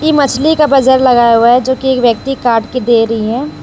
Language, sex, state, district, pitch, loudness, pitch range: Hindi, female, Jharkhand, Deoghar, 255 Hz, -10 LUFS, 235-270 Hz